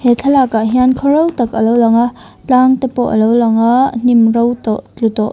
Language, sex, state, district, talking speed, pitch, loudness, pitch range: Mizo, female, Mizoram, Aizawl, 215 wpm, 240 Hz, -12 LUFS, 225-255 Hz